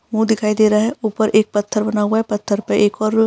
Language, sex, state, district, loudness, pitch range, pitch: Hindi, female, Uttar Pradesh, Etah, -17 LUFS, 210-220 Hz, 215 Hz